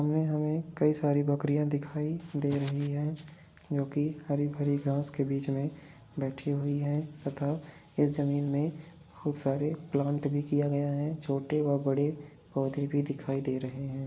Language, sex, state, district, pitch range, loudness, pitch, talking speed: Hindi, male, Bihar, Lakhisarai, 140-150 Hz, -31 LUFS, 145 Hz, 170 wpm